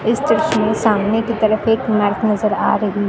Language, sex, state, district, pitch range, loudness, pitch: Hindi, female, Uttar Pradesh, Lucknow, 210-225 Hz, -16 LUFS, 220 Hz